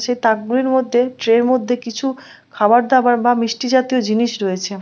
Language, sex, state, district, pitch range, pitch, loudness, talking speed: Bengali, female, West Bengal, Malda, 230-255 Hz, 245 Hz, -16 LUFS, 200 wpm